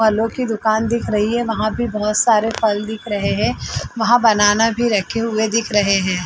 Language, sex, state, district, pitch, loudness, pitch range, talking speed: Hindi, female, Chhattisgarh, Bilaspur, 220 Hz, -17 LUFS, 210-230 Hz, 210 wpm